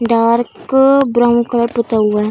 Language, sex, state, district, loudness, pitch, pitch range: Hindi, female, Bihar, Darbhanga, -13 LUFS, 235 Hz, 230-245 Hz